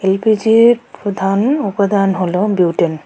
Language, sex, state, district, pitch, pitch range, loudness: Bengali, female, West Bengal, Alipurduar, 200 Hz, 190-220 Hz, -14 LUFS